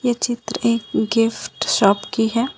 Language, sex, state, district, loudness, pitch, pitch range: Hindi, female, Jharkhand, Ranchi, -19 LUFS, 230 Hz, 225-235 Hz